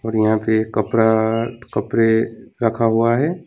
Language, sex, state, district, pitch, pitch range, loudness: Hindi, male, West Bengal, Alipurduar, 115 Hz, 110-115 Hz, -18 LUFS